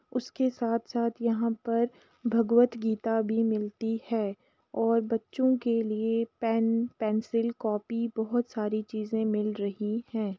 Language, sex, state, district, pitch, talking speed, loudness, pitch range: Hindi, female, Uttar Pradesh, Jalaun, 230 Hz, 140 wpm, -29 LUFS, 220-235 Hz